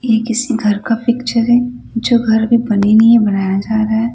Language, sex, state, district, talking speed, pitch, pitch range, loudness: Hindi, female, Odisha, Nuapada, 215 wpm, 230 Hz, 215-235 Hz, -13 LUFS